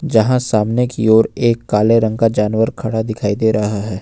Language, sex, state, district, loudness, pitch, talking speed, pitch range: Hindi, male, Jharkhand, Ranchi, -15 LUFS, 110 Hz, 195 wpm, 105-115 Hz